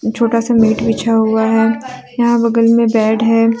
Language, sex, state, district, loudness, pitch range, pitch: Hindi, female, Jharkhand, Deoghar, -13 LUFS, 225-230 Hz, 230 Hz